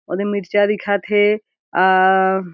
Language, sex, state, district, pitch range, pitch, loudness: Chhattisgarhi, female, Chhattisgarh, Jashpur, 190-205 Hz, 200 Hz, -17 LUFS